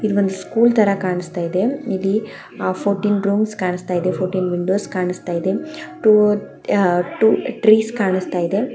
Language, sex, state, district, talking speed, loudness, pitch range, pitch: Kannada, female, Karnataka, Chamarajanagar, 130 wpm, -18 LUFS, 180-215 Hz, 195 Hz